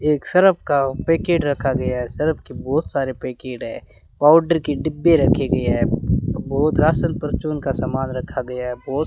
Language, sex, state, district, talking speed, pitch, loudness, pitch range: Hindi, male, Rajasthan, Bikaner, 190 wpm, 140 Hz, -20 LUFS, 130-155 Hz